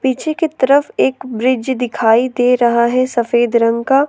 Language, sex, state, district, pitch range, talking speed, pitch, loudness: Hindi, female, Jharkhand, Ranchi, 235-265 Hz, 175 wpm, 250 Hz, -14 LUFS